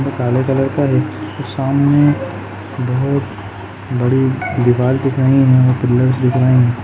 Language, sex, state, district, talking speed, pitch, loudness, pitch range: Hindi, male, Uttar Pradesh, Jalaun, 150 wpm, 130 Hz, -15 LUFS, 120-135 Hz